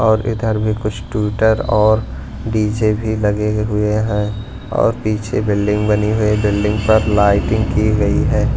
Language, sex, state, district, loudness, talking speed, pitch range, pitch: Hindi, male, Punjab, Pathankot, -16 LUFS, 160 wpm, 105-110 Hz, 105 Hz